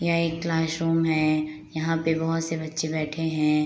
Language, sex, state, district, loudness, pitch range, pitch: Hindi, female, Bihar, Madhepura, -25 LUFS, 155-165 Hz, 160 Hz